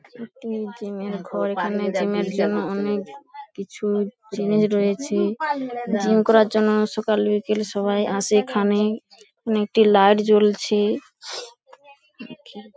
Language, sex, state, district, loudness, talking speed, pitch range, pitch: Bengali, female, West Bengal, Paschim Medinipur, -21 LUFS, 115 wpm, 205-225 Hz, 210 Hz